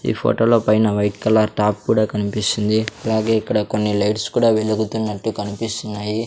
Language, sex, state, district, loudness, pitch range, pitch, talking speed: Telugu, male, Andhra Pradesh, Sri Satya Sai, -19 LUFS, 105-110 Hz, 110 Hz, 145 wpm